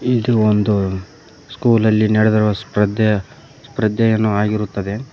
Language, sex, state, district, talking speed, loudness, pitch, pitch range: Kannada, male, Karnataka, Koppal, 80 wpm, -17 LUFS, 110 Hz, 105-120 Hz